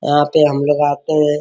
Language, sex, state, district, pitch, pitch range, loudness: Hindi, male, Bihar, Araria, 145 Hz, 145-150 Hz, -15 LUFS